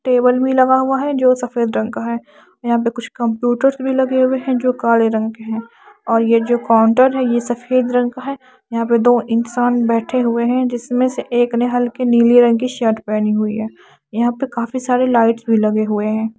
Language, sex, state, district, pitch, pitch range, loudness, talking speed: Hindi, female, Odisha, Nuapada, 240 Hz, 230-255 Hz, -16 LUFS, 225 wpm